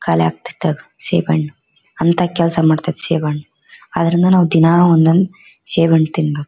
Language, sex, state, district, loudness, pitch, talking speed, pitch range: Kannada, female, Karnataka, Bellary, -15 LUFS, 165 Hz, 155 wpm, 150-175 Hz